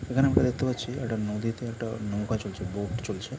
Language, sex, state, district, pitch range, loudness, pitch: Bengali, male, West Bengal, Purulia, 105-125 Hz, -29 LUFS, 115 Hz